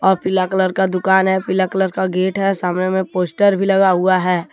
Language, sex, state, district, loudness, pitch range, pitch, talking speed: Hindi, male, Jharkhand, Deoghar, -16 LUFS, 185-190 Hz, 190 Hz, 240 wpm